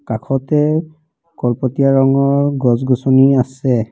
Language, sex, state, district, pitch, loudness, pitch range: Assamese, female, Assam, Kamrup Metropolitan, 135 Hz, -15 LUFS, 130-145 Hz